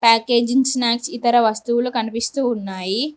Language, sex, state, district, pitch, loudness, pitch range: Telugu, female, Telangana, Mahabubabad, 235 Hz, -19 LUFS, 230-245 Hz